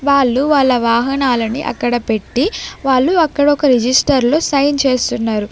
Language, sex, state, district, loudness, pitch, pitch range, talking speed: Telugu, female, Andhra Pradesh, Sri Satya Sai, -14 LUFS, 265 Hz, 240-285 Hz, 130 wpm